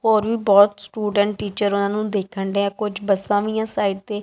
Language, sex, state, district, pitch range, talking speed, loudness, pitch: Punjabi, female, Punjab, Kapurthala, 200-215 Hz, 225 wpm, -20 LUFS, 205 Hz